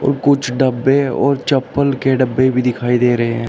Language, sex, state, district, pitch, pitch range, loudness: Hindi, male, Uttar Pradesh, Shamli, 130 Hz, 125-140 Hz, -15 LUFS